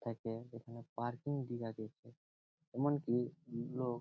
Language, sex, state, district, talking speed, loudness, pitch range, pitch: Bengali, male, West Bengal, Jhargram, 120 wpm, -41 LUFS, 115-130 Hz, 120 Hz